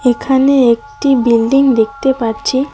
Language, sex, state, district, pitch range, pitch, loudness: Bengali, female, West Bengal, Cooch Behar, 235-275 Hz, 265 Hz, -12 LUFS